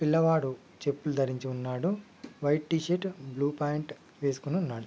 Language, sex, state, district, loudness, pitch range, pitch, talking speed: Telugu, male, Andhra Pradesh, Guntur, -31 LUFS, 135-165 Hz, 145 Hz, 125 wpm